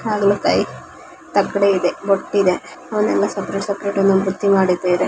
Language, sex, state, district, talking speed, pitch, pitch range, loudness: Kannada, female, Karnataka, Mysore, 105 wpm, 195 Hz, 190-200 Hz, -18 LUFS